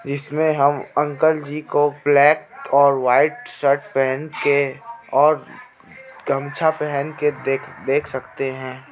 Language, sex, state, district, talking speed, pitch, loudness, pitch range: Hindi, male, Jharkhand, Ranchi, 120 wpm, 145 Hz, -19 LUFS, 135-150 Hz